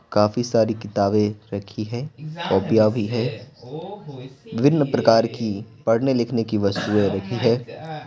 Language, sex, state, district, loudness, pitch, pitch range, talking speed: Hindi, male, Bihar, Patna, -21 LUFS, 115 Hz, 105-135 Hz, 125 wpm